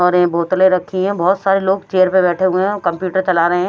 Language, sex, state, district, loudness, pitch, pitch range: Hindi, female, Haryana, Rohtak, -15 LUFS, 185 Hz, 180-190 Hz